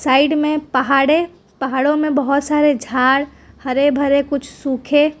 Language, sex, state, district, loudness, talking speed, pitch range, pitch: Hindi, female, Gujarat, Valsad, -16 LUFS, 150 wpm, 265-295 Hz, 280 Hz